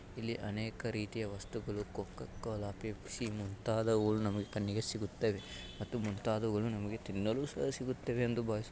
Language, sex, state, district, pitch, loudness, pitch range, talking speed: Kannada, male, Karnataka, Shimoga, 110 Hz, -38 LUFS, 105-115 Hz, 140 wpm